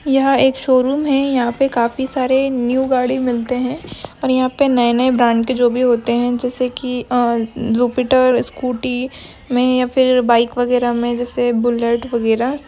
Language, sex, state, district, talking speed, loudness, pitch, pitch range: Hindi, female, Andhra Pradesh, Krishna, 175 wpm, -16 LUFS, 250 Hz, 240-260 Hz